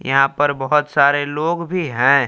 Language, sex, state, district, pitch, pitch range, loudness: Hindi, male, Jharkhand, Palamu, 145 Hz, 135-150 Hz, -17 LUFS